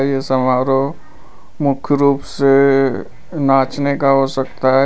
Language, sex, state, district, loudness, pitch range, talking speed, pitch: Hindi, male, Uttar Pradesh, Lalitpur, -15 LUFS, 135-140 Hz, 125 wpm, 135 Hz